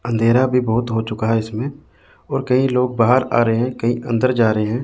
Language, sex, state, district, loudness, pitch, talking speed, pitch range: Hindi, male, Chandigarh, Chandigarh, -18 LUFS, 120 Hz, 235 wpm, 115-125 Hz